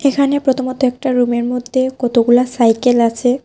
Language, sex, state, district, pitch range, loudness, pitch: Bengali, female, Tripura, West Tripura, 240-260 Hz, -15 LUFS, 250 Hz